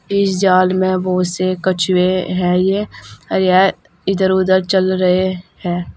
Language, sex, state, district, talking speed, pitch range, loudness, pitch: Hindi, female, Uttar Pradesh, Saharanpur, 130 wpm, 180-190 Hz, -15 LUFS, 185 Hz